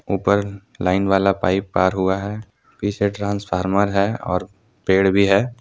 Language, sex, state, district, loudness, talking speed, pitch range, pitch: Hindi, male, Jharkhand, Deoghar, -20 LUFS, 150 wpm, 95-100 Hz, 100 Hz